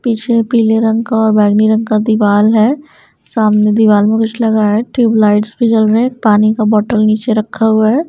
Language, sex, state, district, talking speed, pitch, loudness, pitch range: Hindi, female, Bihar, Patna, 215 wpm, 220 Hz, -11 LUFS, 215-230 Hz